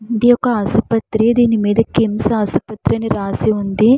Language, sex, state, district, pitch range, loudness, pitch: Telugu, female, Andhra Pradesh, Srikakulam, 205-230 Hz, -16 LUFS, 220 Hz